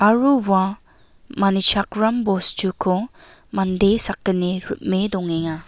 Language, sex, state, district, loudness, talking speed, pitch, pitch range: Garo, female, Meghalaya, West Garo Hills, -19 LUFS, 85 wpm, 195 Hz, 185-210 Hz